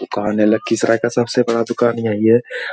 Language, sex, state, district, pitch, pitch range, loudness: Hindi, male, Bihar, Lakhisarai, 115 Hz, 110-120 Hz, -16 LUFS